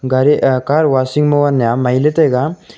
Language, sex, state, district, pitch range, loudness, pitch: Wancho, male, Arunachal Pradesh, Longding, 130-150 Hz, -13 LUFS, 135 Hz